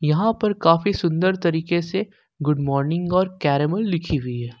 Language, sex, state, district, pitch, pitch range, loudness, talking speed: Hindi, male, Jharkhand, Ranchi, 170 Hz, 150-185 Hz, -21 LUFS, 170 wpm